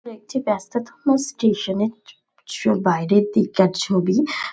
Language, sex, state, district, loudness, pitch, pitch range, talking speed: Bengali, female, West Bengal, Dakshin Dinajpur, -20 LUFS, 210 Hz, 195-240 Hz, 130 wpm